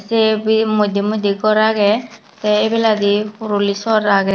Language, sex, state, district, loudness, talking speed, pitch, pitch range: Chakma, female, Tripura, Dhalai, -16 LUFS, 150 wpm, 215 Hz, 205-220 Hz